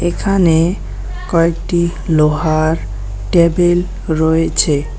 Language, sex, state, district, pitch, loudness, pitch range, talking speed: Bengali, male, West Bengal, Alipurduar, 165 Hz, -14 LUFS, 155-175 Hz, 60 wpm